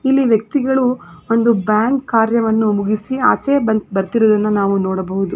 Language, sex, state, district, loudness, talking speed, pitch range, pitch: Kannada, female, Karnataka, Gulbarga, -16 LUFS, 135 wpm, 205-255 Hz, 220 Hz